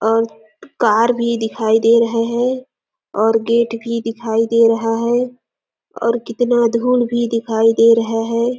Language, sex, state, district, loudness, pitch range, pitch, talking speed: Hindi, female, Chhattisgarh, Sarguja, -16 LUFS, 225-235 Hz, 230 Hz, 155 wpm